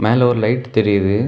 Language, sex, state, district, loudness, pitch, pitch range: Tamil, male, Tamil Nadu, Kanyakumari, -16 LUFS, 110 Hz, 105-125 Hz